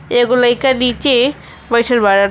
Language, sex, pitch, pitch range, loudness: Bhojpuri, female, 245 Hz, 235-250 Hz, -13 LUFS